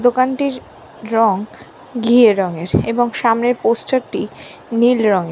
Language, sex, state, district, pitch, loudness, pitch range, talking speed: Bengali, female, West Bengal, Dakshin Dinajpur, 235 Hz, -16 LUFS, 215-245 Hz, 125 wpm